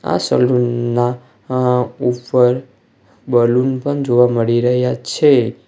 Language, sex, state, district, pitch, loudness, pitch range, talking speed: Gujarati, male, Gujarat, Valsad, 125 Hz, -16 LUFS, 120-125 Hz, 115 wpm